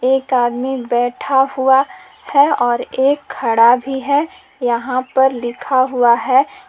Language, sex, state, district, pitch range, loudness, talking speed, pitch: Hindi, female, Jharkhand, Palamu, 245-275 Hz, -15 LUFS, 135 wpm, 265 Hz